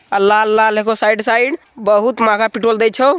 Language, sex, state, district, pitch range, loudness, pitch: Hindi, male, Bihar, Begusarai, 215-230 Hz, -14 LUFS, 220 Hz